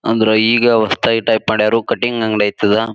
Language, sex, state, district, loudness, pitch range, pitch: Kannada, male, Karnataka, Bijapur, -14 LUFS, 110-115 Hz, 110 Hz